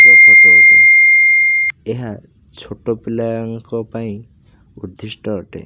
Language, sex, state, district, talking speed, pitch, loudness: Odia, male, Odisha, Khordha, 65 wpm, 115 Hz, -5 LUFS